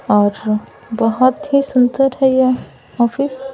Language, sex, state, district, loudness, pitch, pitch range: Hindi, female, Bihar, Patna, -16 LUFS, 255 Hz, 225-270 Hz